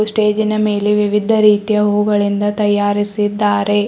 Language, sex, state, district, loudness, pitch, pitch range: Kannada, female, Karnataka, Bidar, -15 LUFS, 210 Hz, 205-210 Hz